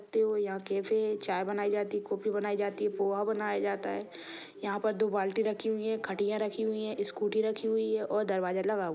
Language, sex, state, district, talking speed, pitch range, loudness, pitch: Hindi, male, Maharashtra, Solapur, 210 wpm, 200-220 Hz, -32 LUFS, 210 Hz